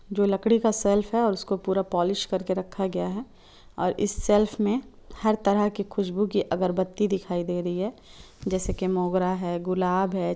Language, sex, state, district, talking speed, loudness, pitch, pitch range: Hindi, female, Chhattisgarh, Bilaspur, 190 wpm, -26 LUFS, 195 Hz, 185-210 Hz